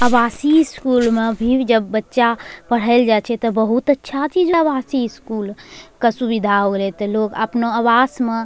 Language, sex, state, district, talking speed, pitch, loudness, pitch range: Angika, female, Bihar, Bhagalpur, 180 wpm, 235 Hz, -17 LUFS, 220-255 Hz